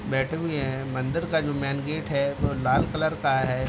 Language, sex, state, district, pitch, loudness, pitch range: Hindi, male, Bihar, Sitamarhi, 140 Hz, -26 LUFS, 130-155 Hz